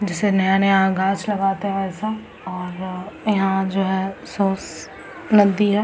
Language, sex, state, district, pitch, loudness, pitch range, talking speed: Hindi, female, Bihar, Samastipur, 195 Hz, -20 LUFS, 190-205 Hz, 135 wpm